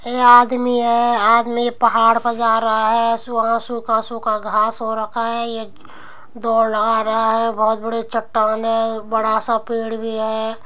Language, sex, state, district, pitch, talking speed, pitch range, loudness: Hindi, female, Uttar Pradesh, Muzaffarnagar, 225 Hz, 170 wpm, 220-235 Hz, -17 LUFS